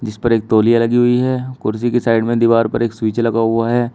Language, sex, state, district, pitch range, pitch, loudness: Hindi, male, Uttar Pradesh, Shamli, 115-120 Hz, 115 Hz, -15 LUFS